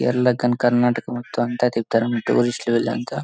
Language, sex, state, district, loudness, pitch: Telugu, male, Andhra Pradesh, Anantapur, -20 LUFS, 120 Hz